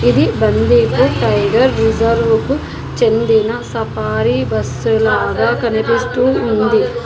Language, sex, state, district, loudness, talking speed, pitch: Telugu, female, Telangana, Hyderabad, -14 LUFS, 85 wpm, 220 Hz